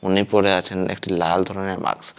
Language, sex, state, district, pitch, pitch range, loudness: Bengali, male, Tripura, West Tripura, 95 Hz, 90-95 Hz, -21 LUFS